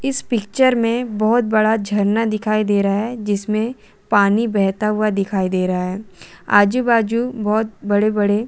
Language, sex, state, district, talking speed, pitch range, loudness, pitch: Hindi, female, Chhattisgarh, Balrampur, 165 wpm, 205-230 Hz, -18 LUFS, 215 Hz